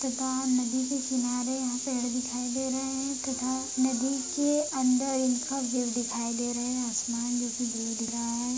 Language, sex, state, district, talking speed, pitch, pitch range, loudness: Hindi, female, Jharkhand, Sahebganj, 145 wpm, 255 Hz, 245-260 Hz, -29 LUFS